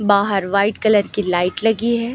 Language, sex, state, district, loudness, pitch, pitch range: Hindi, female, Uttar Pradesh, Lucknow, -17 LUFS, 205 Hz, 200-225 Hz